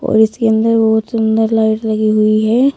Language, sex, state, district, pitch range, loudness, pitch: Hindi, female, Uttar Pradesh, Saharanpur, 220-225 Hz, -13 LUFS, 220 Hz